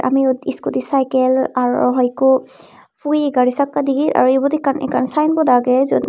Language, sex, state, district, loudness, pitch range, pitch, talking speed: Chakma, female, Tripura, Unakoti, -16 LUFS, 255-280 Hz, 265 Hz, 185 wpm